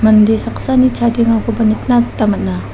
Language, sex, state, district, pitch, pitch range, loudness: Garo, female, Meghalaya, South Garo Hills, 225 Hz, 215-235 Hz, -13 LUFS